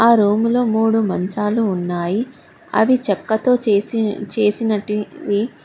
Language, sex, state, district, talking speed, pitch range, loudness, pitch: Telugu, female, Telangana, Hyderabad, 95 wpm, 205-230 Hz, -18 LUFS, 215 Hz